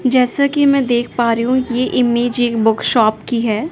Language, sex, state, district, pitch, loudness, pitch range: Hindi, male, Delhi, New Delhi, 245 Hz, -15 LUFS, 235-255 Hz